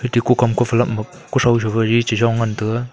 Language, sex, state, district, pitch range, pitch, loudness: Wancho, male, Arunachal Pradesh, Longding, 115-120 Hz, 115 Hz, -17 LUFS